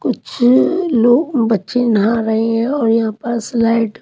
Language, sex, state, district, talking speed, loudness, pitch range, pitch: Hindi, female, Maharashtra, Mumbai Suburban, 165 wpm, -15 LUFS, 225-245 Hz, 230 Hz